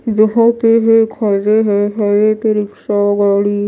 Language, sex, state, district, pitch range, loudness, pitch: Hindi, female, Odisha, Malkangiri, 205-225 Hz, -13 LUFS, 210 Hz